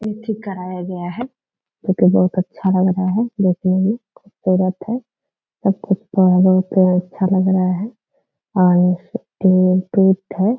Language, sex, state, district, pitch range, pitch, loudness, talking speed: Hindi, male, Bihar, Purnia, 185-210 Hz, 185 Hz, -17 LUFS, 100 wpm